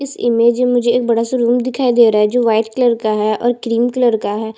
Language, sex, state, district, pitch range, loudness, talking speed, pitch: Hindi, female, Chhattisgarh, Bastar, 220-245 Hz, -14 LUFS, 290 wpm, 235 Hz